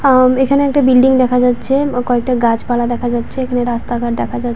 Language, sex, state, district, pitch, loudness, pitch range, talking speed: Bengali, female, West Bengal, Paschim Medinipur, 250 Hz, -14 LUFS, 240-260 Hz, 185 wpm